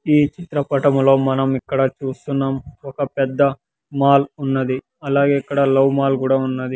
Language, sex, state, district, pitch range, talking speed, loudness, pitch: Telugu, male, Andhra Pradesh, Sri Satya Sai, 135-140 Hz, 135 wpm, -18 LUFS, 135 Hz